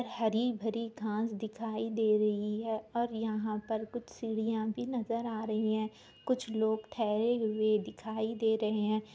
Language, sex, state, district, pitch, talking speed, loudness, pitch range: Hindi, female, Jharkhand, Sahebganj, 220 Hz, 155 wpm, -33 LUFS, 215-230 Hz